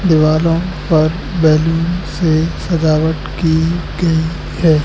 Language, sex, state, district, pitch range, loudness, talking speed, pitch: Hindi, male, Madhya Pradesh, Katni, 155-170 Hz, -15 LUFS, 100 wpm, 160 Hz